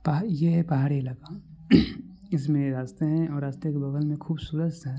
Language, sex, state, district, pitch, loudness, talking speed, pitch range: Maithili, male, Bihar, Supaul, 155 Hz, -26 LUFS, 155 wpm, 140-165 Hz